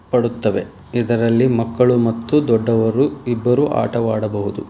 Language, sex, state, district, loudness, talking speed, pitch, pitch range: Kannada, male, Karnataka, Dharwad, -17 LUFS, 100 wpm, 115 Hz, 110-125 Hz